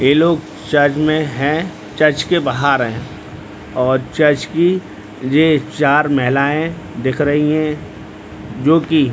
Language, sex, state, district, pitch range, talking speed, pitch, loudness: Hindi, male, Bihar, Saran, 130-155 Hz, 140 wpm, 145 Hz, -15 LUFS